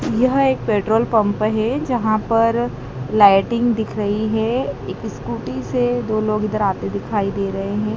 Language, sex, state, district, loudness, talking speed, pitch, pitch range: Hindi, female, Madhya Pradesh, Dhar, -19 LUFS, 165 wpm, 215 Hz, 205-235 Hz